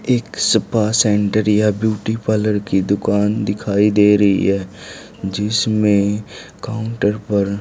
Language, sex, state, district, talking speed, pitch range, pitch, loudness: Hindi, male, Haryana, Charkhi Dadri, 120 wpm, 100-110 Hz, 105 Hz, -17 LUFS